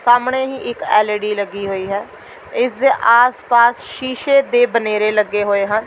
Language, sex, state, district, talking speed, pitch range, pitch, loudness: Punjabi, female, Delhi, New Delhi, 165 wpm, 210-255 Hz, 235 Hz, -16 LUFS